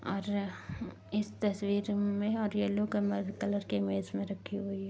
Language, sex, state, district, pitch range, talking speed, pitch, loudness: Hindi, female, Maharashtra, Dhule, 195-205 Hz, 185 wpm, 205 Hz, -34 LUFS